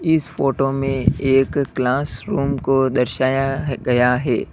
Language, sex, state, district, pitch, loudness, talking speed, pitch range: Hindi, male, Uttar Pradesh, Lalitpur, 135 Hz, -19 LUFS, 120 wpm, 125-140 Hz